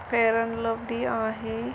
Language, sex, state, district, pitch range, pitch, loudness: Marathi, female, Maharashtra, Sindhudurg, 225-235 Hz, 230 Hz, -27 LUFS